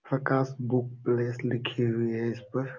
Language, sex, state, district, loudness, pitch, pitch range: Hindi, male, Uttar Pradesh, Jalaun, -29 LUFS, 125 Hz, 120-130 Hz